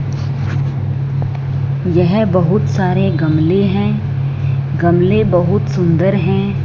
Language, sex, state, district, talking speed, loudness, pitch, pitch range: Hindi, female, Punjab, Fazilka, 80 wpm, -15 LUFS, 135 Hz, 130-150 Hz